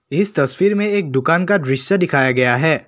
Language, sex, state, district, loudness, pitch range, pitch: Hindi, male, Assam, Kamrup Metropolitan, -16 LUFS, 135-200 Hz, 160 Hz